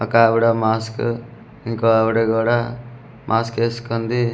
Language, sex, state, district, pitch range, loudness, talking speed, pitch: Telugu, male, Andhra Pradesh, Manyam, 115-120 Hz, -19 LUFS, 95 wpm, 115 Hz